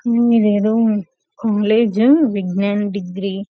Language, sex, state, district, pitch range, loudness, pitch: Telugu, female, Telangana, Karimnagar, 200-230 Hz, -16 LUFS, 210 Hz